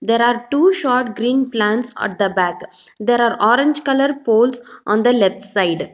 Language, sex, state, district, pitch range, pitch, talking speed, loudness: English, female, Telangana, Hyderabad, 210-255 Hz, 240 Hz, 180 wpm, -17 LUFS